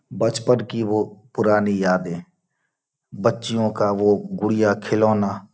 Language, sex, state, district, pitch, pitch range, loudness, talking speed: Hindi, male, Bihar, Gopalganj, 105 Hz, 100-115 Hz, -21 LUFS, 95 wpm